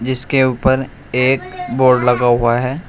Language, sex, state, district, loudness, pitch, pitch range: Hindi, male, Uttar Pradesh, Shamli, -15 LUFS, 130 Hz, 125-130 Hz